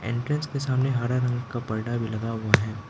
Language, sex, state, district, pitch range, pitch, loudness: Hindi, male, Arunachal Pradesh, Lower Dibang Valley, 115-125 Hz, 120 Hz, -26 LUFS